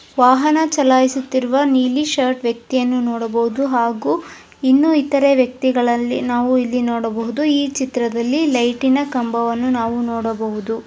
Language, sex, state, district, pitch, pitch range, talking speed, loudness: Kannada, female, Karnataka, Dharwad, 255 Hz, 235-270 Hz, 110 wpm, -17 LUFS